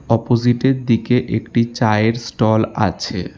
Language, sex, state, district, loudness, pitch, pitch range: Bengali, male, West Bengal, Alipurduar, -17 LUFS, 115 Hz, 110-120 Hz